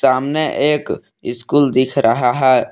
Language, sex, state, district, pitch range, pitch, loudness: Hindi, male, Jharkhand, Palamu, 125-145 Hz, 130 Hz, -16 LUFS